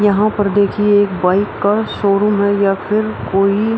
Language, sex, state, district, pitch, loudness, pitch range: Hindi, female, Bihar, Araria, 205 Hz, -15 LUFS, 200-210 Hz